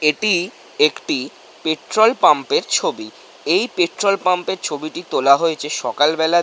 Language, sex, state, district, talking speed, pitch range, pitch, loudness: Bengali, male, West Bengal, North 24 Parganas, 120 wpm, 155-200 Hz, 175 Hz, -18 LUFS